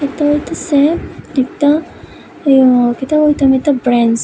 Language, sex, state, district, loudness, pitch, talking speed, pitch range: Bengali, female, Tripura, West Tripura, -13 LUFS, 280 Hz, 125 wpm, 260-295 Hz